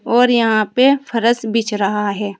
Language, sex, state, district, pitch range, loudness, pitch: Hindi, female, Uttar Pradesh, Saharanpur, 210-240 Hz, -16 LUFS, 225 Hz